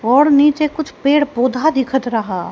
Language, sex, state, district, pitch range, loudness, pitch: Hindi, female, Haryana, Jhajjar, 250-295 Hz, -15 LUFS, 275 Hz